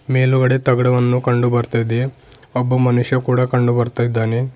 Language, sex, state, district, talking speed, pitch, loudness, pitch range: Kannada, male, Karnataka, Bidar, 145 wpm, 125 Hz, -17 LUFS, 120-130 Hz